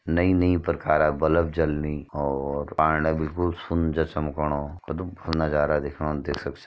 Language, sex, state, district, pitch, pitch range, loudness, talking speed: Hindi, male, Uttarakhand, Uttarkashi, 80 Hz, 75-85 Hz, -25 LUFS, 170 wpm